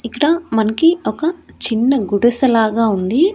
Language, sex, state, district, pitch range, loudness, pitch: Telugu, female, Andhra Pradesh, Annamaya, 225-320 Hz, -14 LUFS, 240 Hz